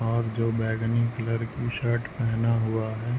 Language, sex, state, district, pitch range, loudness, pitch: Hindi, male, Chhattisgarh, Bilaspur, 115-120 Hz, -27 LUFS, 115 Hz